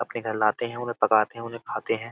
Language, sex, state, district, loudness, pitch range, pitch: Hindi, male, Uttar Pradesh, Budaun, -26 LUFS, 110-120 Hz, 115 Hz